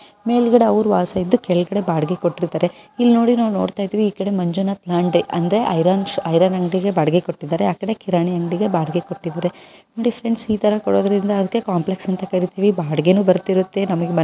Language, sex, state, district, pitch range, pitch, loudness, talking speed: Kannada, female, Karnataka, Bijapur, 175-210 Hz, 190 Hz, -18 LUFS, 95 wpm